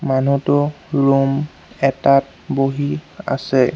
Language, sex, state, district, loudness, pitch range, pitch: Assamese, male, Assam, Sonitpur, -18 LUFS, 135-145 Hz, 135 Hz